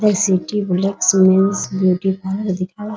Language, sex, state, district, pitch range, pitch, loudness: Hindi, female, Bihar, Muzaffarpur, 185-205 Hz, 190 Hz, -17 LUFS